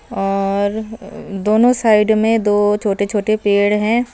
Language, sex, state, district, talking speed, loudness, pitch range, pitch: Hindi, female, Punjab, Fazilka, 145 wpm, -16 LUFS, 200-220 Hz, 210 Hz